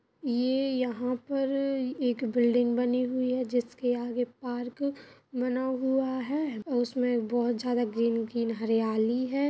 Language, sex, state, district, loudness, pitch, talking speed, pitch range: Hindi, female, Bihar, Jahanabad, -29 LUFS, 245 Hz, 140 wpm, 240-260 Hz